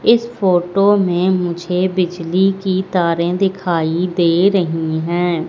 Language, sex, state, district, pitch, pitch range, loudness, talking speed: Hindi, female, Madhya Pradesh, Katni, 180 Hz, 170-190 Hz, -16 LUFS, 120 wpm